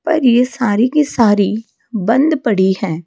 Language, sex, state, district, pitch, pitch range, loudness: Hindi, female, Odisha, Malkangiri, 230 Hz, 205-260 Hz, -14 LUFS